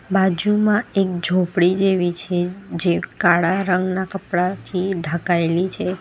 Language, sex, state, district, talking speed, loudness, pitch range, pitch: Gujarati, female, Gujarat, Valsad, 110 wpm, -20 LUFS, 175-190 Hz, 185 Hz